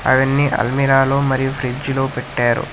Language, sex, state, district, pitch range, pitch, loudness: Telugu, male, Telangana, Hyderabad, 125-135 Hz, 135 Hz, -17 LUFS